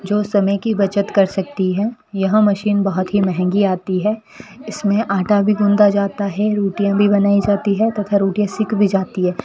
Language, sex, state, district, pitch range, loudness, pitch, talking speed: Hindi, female, Rajasthan, Bikaner, 195-210 Hz, -17 LUFS, 200 Hz, 195 wpm